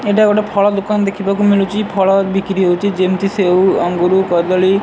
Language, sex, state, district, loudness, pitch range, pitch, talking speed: Odia, male, Odisha, Sambalpur, -14 LUFS, 185-200 Hz, 195 Hz, 160 wpm